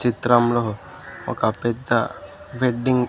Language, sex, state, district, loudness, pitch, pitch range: Telugu, male, Andhra Pradesh, Sri Satya Sai, -21 LUFS, 120 Hz, 115-125 Hz